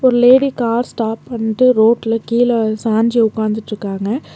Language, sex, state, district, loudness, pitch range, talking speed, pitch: Tamil, female, Tamil Nadu, Nilgiris, -15 LUFS, 220-245 Hz, 110 wpm, 230 Hz